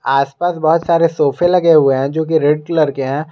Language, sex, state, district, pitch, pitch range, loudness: Hindi, male, Jharkhand, Garhwa, 155 Hz, 140-165 Hz, -14 LUFS